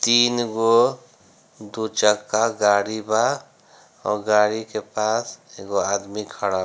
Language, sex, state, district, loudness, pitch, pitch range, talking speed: Bhojpuri, male, Bihar, Gopalganj, -21 LUFS, 110 Hz, 105-115 Hz, 125 wpm